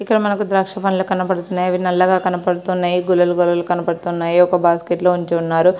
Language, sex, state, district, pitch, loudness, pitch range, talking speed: Telugu, female, Andhra Pradesh, Srikakulam, 180 Hz, -17 LUFS, 175-185 Hz, 155 wpm